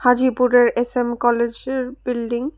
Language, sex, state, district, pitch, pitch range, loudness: Bengali, female, Tripura, West Tripura, 245 Hz, 240-255 Hz, -19 LUFS